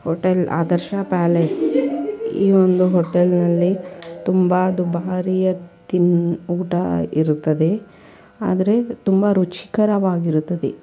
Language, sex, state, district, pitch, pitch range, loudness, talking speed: Kannada, female, Karnataka, Belgaum, 180 Hz, 170-190 Hz, -19 LUFS, 85 wpm